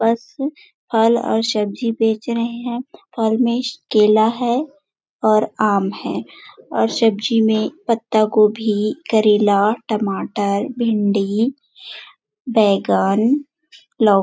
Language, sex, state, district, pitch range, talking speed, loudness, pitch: Hindi, female, Chhattisgarh, Bilaspur, 210-240 Hz, 105 wpm, -18 LUFS, 225 Hz